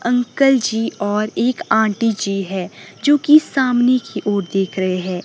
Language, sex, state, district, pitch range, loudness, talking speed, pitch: Hindi, female, Himachal Pradesh, Shimla, 195-250 Hz, -17 LUFS, 170 wpm, 220 Hz